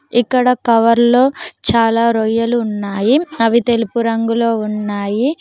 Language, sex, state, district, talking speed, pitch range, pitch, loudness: Telugu, female, Telangana, Mahabubabad, 100 wpm, 225-240 Hz, 230 Hz, -15 LUFS